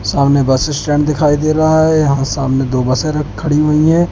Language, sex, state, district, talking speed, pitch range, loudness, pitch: Hindi, male, Madhya Pradesh, Katni, 220 wpm, 135-155 Hz, -13 LUFS, 150 Hz